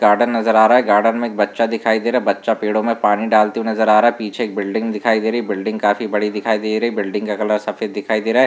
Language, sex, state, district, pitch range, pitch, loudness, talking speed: Hindi, male, Rajasthan, Churu, 105-115 Hz, 110 Hz, -17 LUFS, 270 wpm